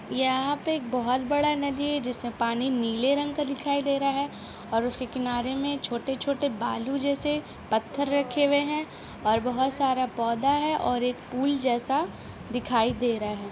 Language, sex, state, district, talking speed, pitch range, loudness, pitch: Hindi, female, Bihar, East Champaran, 180 wpm, 245-285 Hz, -27 LUFS, 265 Hz